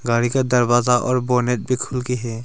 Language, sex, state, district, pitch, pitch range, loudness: Hindi, male, Arunachal Pradesh, Longding, 125 Hz, 120-125 Hz, -19 LUFS